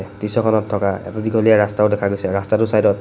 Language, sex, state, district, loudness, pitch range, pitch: Assamese, male, Assam, Sonitpur, -18 LUFS, 100-110 Hz, 105 Hz